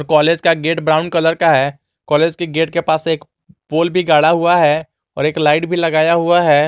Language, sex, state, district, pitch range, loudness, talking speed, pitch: Hindi, male, Jharkhand, Garhwa, 155-170 Hz, -15 LUFS, 225 wpm, 160 Hz